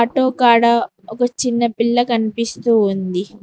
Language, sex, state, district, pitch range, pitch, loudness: Telugu, female, Telangana, Mahabubabad, 220-240 Hz, 235 Hz, -16 LUFS